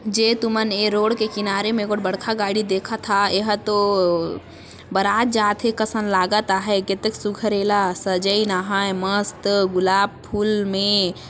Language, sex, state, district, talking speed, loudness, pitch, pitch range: Chhattisgarhi, female, Chhattisgarh, Sarguja, 170 wpm, -20 LUFS, 205 Hz, 195-215 Hz